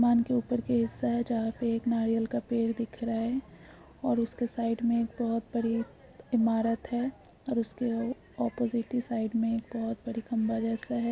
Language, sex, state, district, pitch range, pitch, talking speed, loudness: Hindi, female, Chhattisgarh, Bilaspur, 230-240 Hz, 230 Hz, 190 wpm, -31 LUFS